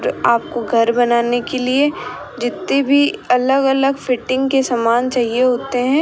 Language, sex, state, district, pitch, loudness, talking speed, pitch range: Hindi, female, Rajasthan, Bikaner, 255 Hz, -16 LUFS, 150 wpm, 240-275 Hz